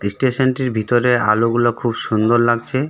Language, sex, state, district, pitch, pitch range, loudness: Bengali, male, West Bengal, Darjeeling, 120 Hz, 115-125 Hz, -16 LUFS